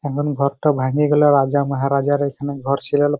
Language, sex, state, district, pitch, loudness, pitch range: Bengali, male, West Bengal, Malda, 140 Hz, -18 LUFS, 140-145 Hz